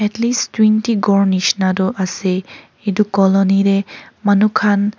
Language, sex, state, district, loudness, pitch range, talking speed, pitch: Nagamese, female, Nagaland, Kohima, -16 LUFS, 195-210 Hz, 130 wpm, 200 Hz